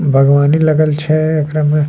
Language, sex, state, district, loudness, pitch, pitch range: Bajjika, male, Bihar, Vaishali, -12 LUFS, 150 Hz, 145-155 Hz